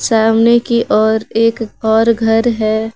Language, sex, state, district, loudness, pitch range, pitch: Hindi, female, Jharkhand, Garhwa, -13 LUFS, 220-230 Hz, 225 Hz